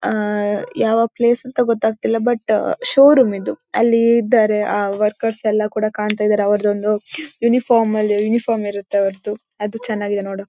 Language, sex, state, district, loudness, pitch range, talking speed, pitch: Kannada, female, Karnataka, Dakshina Kannada, -17 LUFS, 210-235 Hz, 145 wpm, 215 Hz